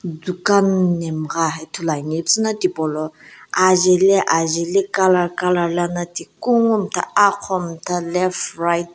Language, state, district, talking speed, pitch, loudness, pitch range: Sumi, Nagaland, Dimapur, 120 wpm, 175 Hz, -18 LUFS, 165-190 Hz